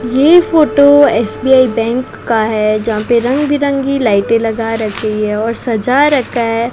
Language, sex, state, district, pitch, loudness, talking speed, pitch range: Hindi, female, Rajasthan, Bikaner, 235 Hz, -12 LUFS, 160 wpm, 225-275 Hz